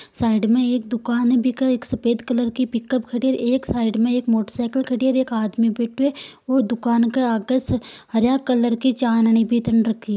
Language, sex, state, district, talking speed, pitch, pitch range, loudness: Marwari, female, Rajasthan, Nagaur, 185 wpm, 240 Hz, 230-255 Hz, -20 LUFS